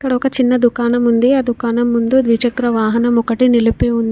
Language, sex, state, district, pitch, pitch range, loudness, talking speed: Telugu, female, Telangana, Komaram Bheem, 240 Hz, 235-250 Hz, -14 LUFS, 190 wpm